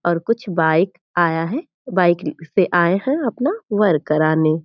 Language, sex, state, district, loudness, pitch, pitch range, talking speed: Hindi, female, Bihar, Purnia, -19 LUFS, 175 Hz, 165-210 Hz, 140 wpm